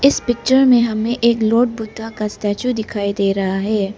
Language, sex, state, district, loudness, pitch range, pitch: Hindi, female, Arunachal Pradesh, Lower Dibang Valley, -17 LUFS, 205-240 Hz, 220 Hz